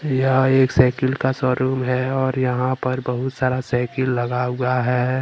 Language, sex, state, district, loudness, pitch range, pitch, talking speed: Hindi, male, Jharkhand, Ranchi, -20 LUFS, 125-130 Hz, 130 Hz, 170 wpm